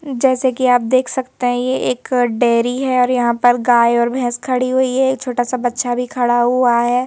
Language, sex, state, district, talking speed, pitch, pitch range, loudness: Hindi, female, Madhya Pradesh, Bhopal, 230 wpm, 250 Hz, 245-255 Hz, -16 LUFS